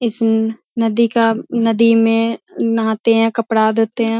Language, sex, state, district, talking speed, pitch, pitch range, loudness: Hindi, female, Bihar, Purnia, 145 wpm, 225 Hz, 225-230 Hz, -16 LUFS